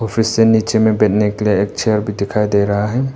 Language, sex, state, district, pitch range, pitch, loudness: Hindi, male, Arunachal Pradesh, Papum Pare, 105-110 Hz, 105 Hz, -15 LUFS